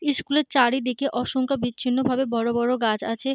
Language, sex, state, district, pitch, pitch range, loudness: Bengali, female, West Bengal, Jhargram, 255 Hz, 240-270 Hz, -23 LUFS